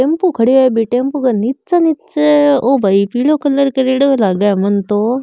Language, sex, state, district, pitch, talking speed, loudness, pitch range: Marwari, female, Rajasthan, Nagaur, 265 Hz, 170 wpm, -13 LUFS, 225-285 Hz